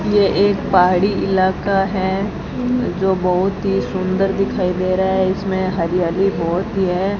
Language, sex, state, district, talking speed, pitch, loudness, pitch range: Hindi, female, Rajasthan, Bikaner, 150 wpm, 190 Hz, -18 LUFS, 185-195 Hz